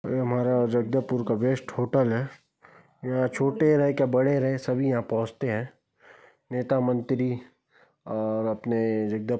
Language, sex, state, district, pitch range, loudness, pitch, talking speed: Hindi, male, Chhattisgarh, Bastar, 120-135 Hz, -26 LUFS, 125 Hz, 145 wpm